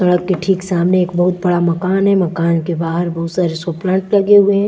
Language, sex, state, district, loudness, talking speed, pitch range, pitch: Hindi, female, Bihar, West Champaran, -15 LUFS, 245 wpm, 170-190 Hz, 180 Hz